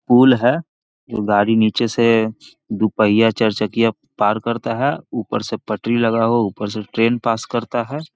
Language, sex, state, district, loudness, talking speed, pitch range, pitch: Magahi, male, Bihar, Jahanabad, -18 LUFS, 190 wpm, 110-120 Hz, 115 Hz